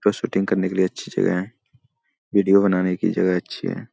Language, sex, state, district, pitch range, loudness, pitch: Hindi, male, Bihar, Saharsa, 90-105 Hz, -21 LUFS, 95 Hz